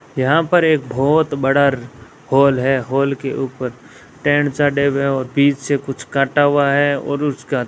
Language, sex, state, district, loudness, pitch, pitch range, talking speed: Hindi, male, Rajasthan, Bikaner, -17 LUFS, 140 Hz, 135-145 Hz, 165 wpm